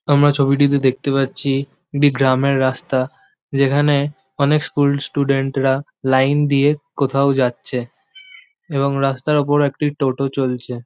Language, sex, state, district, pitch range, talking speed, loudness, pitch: Bengali, male, West Bengal, Jhargram, 135-145 Hz, 120 wpm, -18 LUFS, 140 Hz